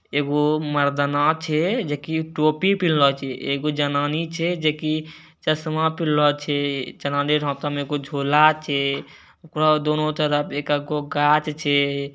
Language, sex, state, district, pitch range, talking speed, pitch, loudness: Maithili, male, Bihar, Bhagalpur, 145-155 Hz, 150 wpm, 150 Hz, -21 LUFS